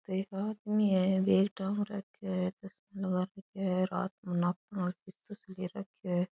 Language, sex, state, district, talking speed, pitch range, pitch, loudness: Rajasthani, female, Rajasthan, Churu, 160 wpm, 185-200 Hz, 190 Hz, -33 LUFS